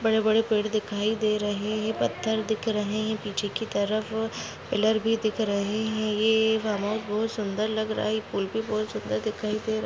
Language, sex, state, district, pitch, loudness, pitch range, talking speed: Hindi, female, Maharashtra, Sindhudurg, 215 Hz, -27 LUFS, 210-220 Hz, 200 wpm